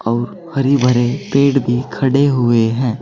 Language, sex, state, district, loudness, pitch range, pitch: Hindi, male, Uttar Pradesh, Saharanpur, -15 LUFS, 120-140 Hz, 125 Hz